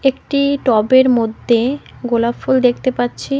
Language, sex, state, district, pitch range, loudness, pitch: Bengali, female, West Bengal, Cooch Behar, 235-270 Hz, -15 LUFS, 255 Hz